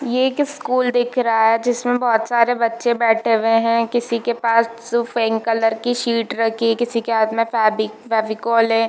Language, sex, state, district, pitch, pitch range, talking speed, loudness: Hindi, female, Jharkhand, Jamtara, 230 Hz, 225-240 Hz, 200 wpm, -18 LUFS